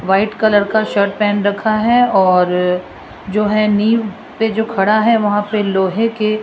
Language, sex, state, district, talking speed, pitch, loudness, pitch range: Hindi, female, Rajasthan, Jaipur, 185 wpm, 210 Hz, -15 LUFS, 200-220 Hz